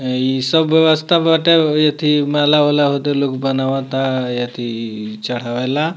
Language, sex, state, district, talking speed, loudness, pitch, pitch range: Bhojpuri, male, Bihar, Muzaffarpur, 120 wpm, -16 LUFS, 140 Hz, 125-150 Hz